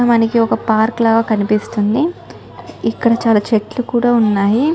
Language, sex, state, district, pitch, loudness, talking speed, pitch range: Telugu, female, Telangana, Nalgonda, 225 Hz, -15 LUFS, 125 wpm, 215-235 Hz